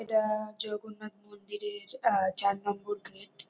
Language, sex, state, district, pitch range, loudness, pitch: Bengali, female, West Bengal, North 24 Parganas, 205-220 Hz, -31 LUFS, 210 Hz